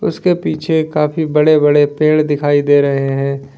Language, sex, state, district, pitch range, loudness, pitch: Hindi, male, Uttar Pradesh, Lalitpur, 145-155 Hz, -13 LUFS, 150 Hz